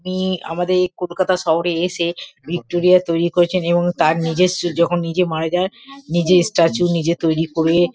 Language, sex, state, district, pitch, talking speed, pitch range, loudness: Bengali, female, West Bengal, Kolkata, 175 Hz, 165 wpm, 165-180 Hz, -18 LUFS